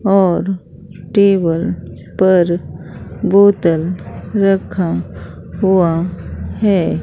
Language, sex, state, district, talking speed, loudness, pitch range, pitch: Hindi, female, Bihar, Katihar, 60 wpm, -15 LUFS, 165-195 Hz, 180 Hz